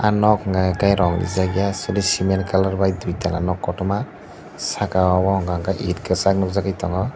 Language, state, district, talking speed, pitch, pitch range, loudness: Kokborok, Tripura, Dhalai, 175 wpm, 95 Hz, 90-100 Hz, -20 LUFS